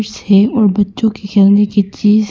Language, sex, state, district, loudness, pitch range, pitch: Hindi, female, Arunachal Pradesh, Papum Pare, -12 LUFS, 200-215 Hz, 205 Hz